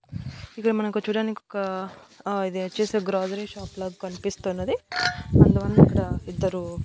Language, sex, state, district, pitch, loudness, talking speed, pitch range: Telugu, female, Andhra Pradesh, Annamaya, 195 Hz, -24 LUFS, 115 wpm, 190-215 Hz